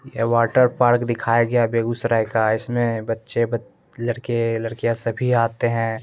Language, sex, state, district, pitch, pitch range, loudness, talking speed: Hindi, male, Bihar, Begusarai, 115 Hz, 115-120 Hz, -21 LUFS, 150 wpm